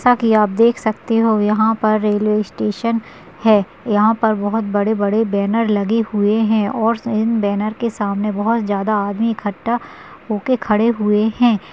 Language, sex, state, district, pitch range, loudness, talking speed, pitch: Hindi, female, Rajasthan, Nagaur, 210-225 Hz, -17 LUFS, 160 wpm, 215 Hz